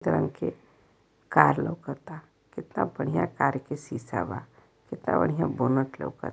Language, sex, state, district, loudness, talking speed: Bhojpuri, female, Uttar Pradesh, Varanasi, -28 LUFS, 125 wpm